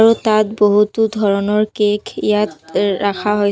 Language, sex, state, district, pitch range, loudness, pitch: Assamese, female, Assam, Sonitpur, 205-215 Hz, -16 LUFS, 210 Hz